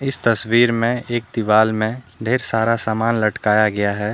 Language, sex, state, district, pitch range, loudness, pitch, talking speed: Hindi, male, Jharkhand, Deoghar, 110-115 Hz, -18 LUFS, 115 Hz, 175 wpm